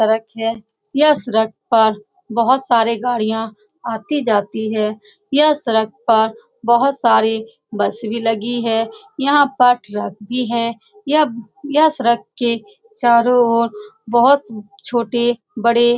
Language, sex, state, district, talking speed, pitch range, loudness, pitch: Hindi, female, Bihar, Saran, 125 wpm, 220-270 Hz, -17 LUFS, 235 Hz